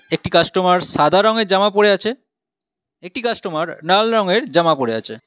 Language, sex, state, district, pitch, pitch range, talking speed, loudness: Bengali, male, West Bengal, Alipurduar, 190 Hz, 160-215 Hz, 160 wpm, -16 LUFS